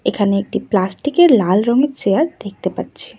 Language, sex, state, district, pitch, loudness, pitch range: Bengali, female, West Bengal, Cooch Behar, 210 Hz, -16 LUFS, 195-275 Hz